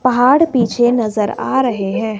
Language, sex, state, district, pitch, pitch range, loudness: Hindi, male, Himachal Pradesh, Shimla, 240 Hz, 215-255 Hz, -15 LUFS